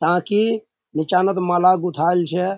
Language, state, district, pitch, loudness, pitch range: Surjapuri, Bihar, Kishanganj, 180 Hz, -19 LUFS, 175-195 Hz